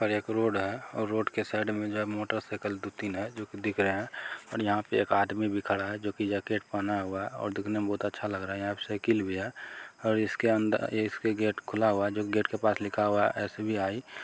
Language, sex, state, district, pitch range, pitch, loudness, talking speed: Maithili, male, Bihar, Begusarai, 100-110 Hz, 105 Hz, -31 LUFS, 275 wpm